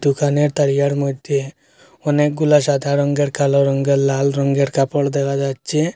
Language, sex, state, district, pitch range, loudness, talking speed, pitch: Bengali, male, Assam, Hailakandi, 140-145 Hz, -17 LUFS, 130 wpm, 140 Hz